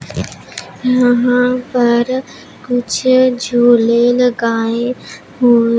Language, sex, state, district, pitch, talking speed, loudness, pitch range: Hindi, female, Punjab, Pathankot, 245 Hz, 60 wpm, -14 LUFS, 235-250 Hz